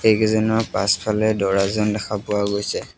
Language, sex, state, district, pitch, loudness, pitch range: Assamese, male, Assam, Sonitpur, 105 Hz, -20 LUFS, 100-110 Hz